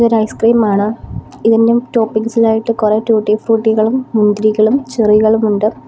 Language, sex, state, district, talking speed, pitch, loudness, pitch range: Malayalam, female, Kerala, Kollam, 100 wpm, 220 Hz, -13 LUFS, 215-230 Hz